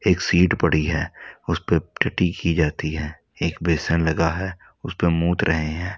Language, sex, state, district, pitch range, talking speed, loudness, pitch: Hindi, male, Delhi, New Delhi, 80-90 Hz, 190 wpm, -22 LUFS, 85 Hz